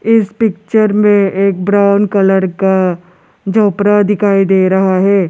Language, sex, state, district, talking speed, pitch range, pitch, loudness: Hindi, male, Arunachal Pradesh, Lower Dibang Valley, 135 wpm, 190-205 Hz, 200 Hz, -11 LUFS